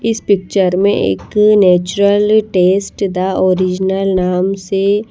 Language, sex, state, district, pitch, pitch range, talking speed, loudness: Hindi, female, Madhya Pradesh, Bhopal, 195 Hz, 185-205 Hz, 115 wpm, -13 LUFS